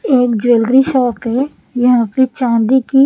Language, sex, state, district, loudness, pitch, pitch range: Hindi, female, Punjab, Pathankot, -13 LUFS, 250 Hz, 240-265 Hz